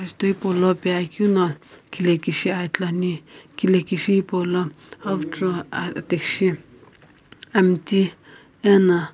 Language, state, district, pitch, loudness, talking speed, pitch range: Sumi, Nagaland, Kohima, 180 Hz, -21 LUFS, 85 wpm, 165-190 Hz